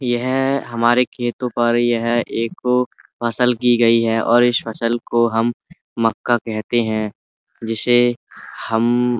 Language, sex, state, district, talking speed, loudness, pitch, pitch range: Hindi, male, Uttar Pradesh, Budaun, 135 wpm, -18 LUFS, 120 Hz, 115-120 Hz